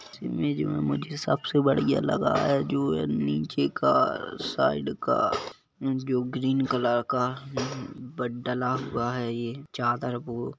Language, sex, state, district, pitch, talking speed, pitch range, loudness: Hindi, male, Chhattisgarh, Kabirdham, 125 Hz, 135 wpm, 115-130 Hz, -27 LUFS